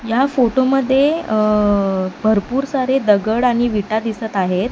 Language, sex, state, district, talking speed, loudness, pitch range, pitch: Marathi, female, Maharashtra, Mumbai Suburban, 125 wpm, -17 LUFS, 210-260 Hz, 225 Hz